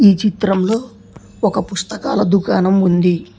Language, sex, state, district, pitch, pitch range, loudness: Telugu, male, Telangana, Hyderabad, 195 Hz, 185-210 Hz, -16 LUFS